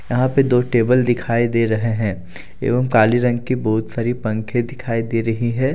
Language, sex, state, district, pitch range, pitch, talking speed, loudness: Hindi, male, Jharkhand, Deoghar, 110-125 Hz, 115 Hz, 200 wpm, -18 LUFS